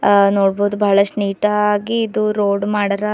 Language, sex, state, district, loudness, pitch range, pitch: Kannada, female, Karnataka, Bidar, -16 LUFS, 200-210 Hz, 205 Hz